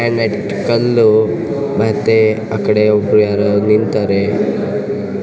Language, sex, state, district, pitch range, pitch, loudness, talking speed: Kannada, male, Karnataka, Chamarajanagar, 105-110 Hz, 105 Hz, -14 LUFS, 80 wpm